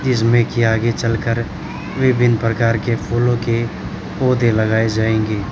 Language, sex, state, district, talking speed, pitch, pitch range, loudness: Hindi, male, Haryana, Rohtak, 140 wpm, 115 Hz, 110-120 Hz, -17 LUFS